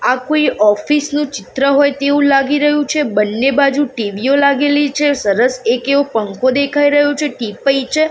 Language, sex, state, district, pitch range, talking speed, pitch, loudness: Gujarati, female, Gujarat, Gandhinagar, 250-290 Hz, 185 wpm, 280 Hz, -14 LUFS